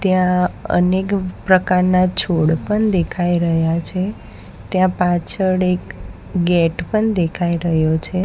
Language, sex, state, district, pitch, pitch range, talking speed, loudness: Gujarati, female, Gujarat, Gandhinagar, 180 Hz, 170-185 Hz, 115 wpm, -17 LUFS